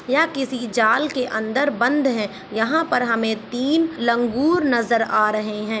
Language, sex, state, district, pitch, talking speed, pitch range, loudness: Hindi, female, Jharkhand, Jamtara, 240 Hz, 165 wpm, 220-280 Hz, -20 LUFS